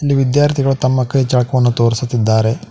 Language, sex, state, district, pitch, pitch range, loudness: Kannada, male, Karnataka, Koppal, 130 Hz, 120-135 Hz, -14 LUFS